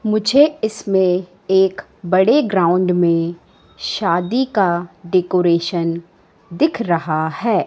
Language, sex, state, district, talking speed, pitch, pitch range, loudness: Hindi, female, Madhya Pradesh, Katni, 95 wpm, 185 Hz, 170-210 Hz, -17 LUFS